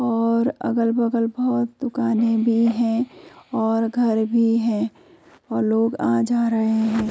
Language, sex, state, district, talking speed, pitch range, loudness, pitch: Hindi, female, Uttar Pradesh, Jyotiba Phule Nagar, 135 wpm, 225-240 Hz, -21 LUFS, 230 Hz